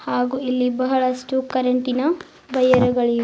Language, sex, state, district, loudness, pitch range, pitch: Kannada, female, Karnataka, Bidar, -20 LUFS, 250-260 Hz, 255 Hz